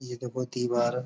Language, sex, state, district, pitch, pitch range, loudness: Hindi, male, Uttar Pradesh, Budaun, 125 Hz, 120-125 Hz, -30 LUFS